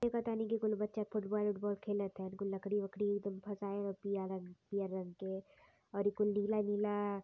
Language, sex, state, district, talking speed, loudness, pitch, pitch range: Hindi, female, Uttar Pradesh, Varanasi, 115 wpm, -39 LUFS, 205 Hz, 195-210 Hz